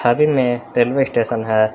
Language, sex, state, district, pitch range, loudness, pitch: Hindi, male, Jharkhand, Palamu, 115-135 Hz, -17 LUFS, 120 Hz